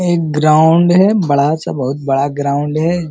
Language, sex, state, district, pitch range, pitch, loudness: Hindi, male, Bihar, Araria, 140-170 Hz, 155 Hz, -13 LUFS